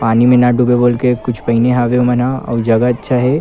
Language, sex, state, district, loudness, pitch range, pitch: Chhattisgarhi, male, Chhattisgarh, Kabirdham, -13 LUFS, 120-125 Hz, 125 Hz